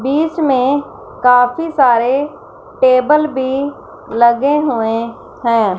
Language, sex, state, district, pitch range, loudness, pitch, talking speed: Hindi, female, Punjab, Fazilka, 235-290 Hz, -14 LUFS, 260 Hz, 95 wpm